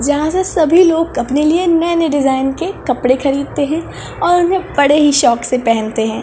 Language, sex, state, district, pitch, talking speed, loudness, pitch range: Hindi, female, Chhattisgarh, Balrampur, 295 Hz, 190 wpm, -14 LUFS, 265-340 Hz